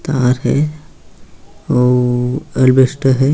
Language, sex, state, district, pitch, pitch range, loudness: Hindi, male, Chhattisgarh, Raigarh, 130 Hz, 125-140 Hz, -14 LUFS